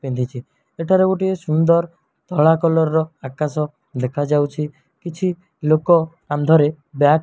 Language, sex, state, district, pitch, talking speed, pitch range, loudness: Odia, male, Odisha, Malkangiri, 155 Hz, 115 wpm, 145-170 Hz, -19 LUFS